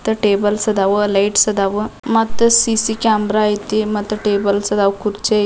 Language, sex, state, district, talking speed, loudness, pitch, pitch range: Kannada, female, Karnataka, Dharwad, 145 wpm, -16 LUFS, 210 Hz, 205-220 Hz